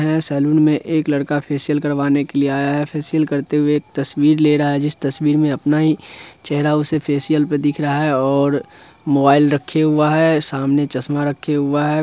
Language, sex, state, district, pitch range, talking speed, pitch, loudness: Hindi, male, Bihar, Sitamarhi, 140-150 Hz, 205 wpm, 145 Hz, -17 LUFS